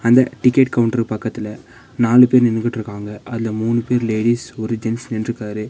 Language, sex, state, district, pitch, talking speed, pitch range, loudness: Tamil, male, Tamil Nadu, Nilgiris, 115 Hz, 135 wpm, 110-120 Hz, -18 LUFS